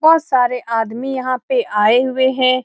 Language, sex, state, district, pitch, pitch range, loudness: Hindi, female, Bihar, Saran, 255 Hz, 240-260 Hz, -16 LUFS